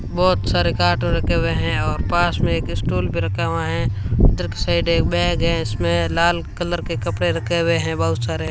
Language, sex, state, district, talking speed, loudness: Hindi, female, Rajasthan, Bikaner, 210 wpm, -20 LUFS